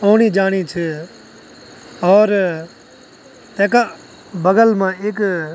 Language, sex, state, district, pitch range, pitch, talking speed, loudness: Garhwali, male, Uttarakhand, Tehri Garhwal, 180-220 Hz, 200 Hz, 85 wpm, -16 LUFS